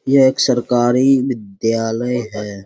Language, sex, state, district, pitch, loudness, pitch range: Hindi, male, Bihar, Jamui, 120 Hz, -16 LUFS, 115-130 Hz